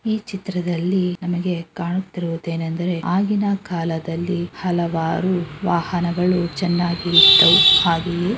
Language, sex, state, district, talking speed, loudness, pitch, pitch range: Kannada, female, Karnataka, Mysore, 80 wpm, -18 LUFS, 175 Hz, 170-185 Hz